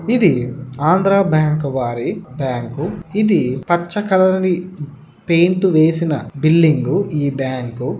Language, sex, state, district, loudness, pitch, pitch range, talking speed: Telugu, male, Andhra Pradesh, Srikakulam, -17 LUFS, 155 Hz, 135-185 Hz, 115 wpm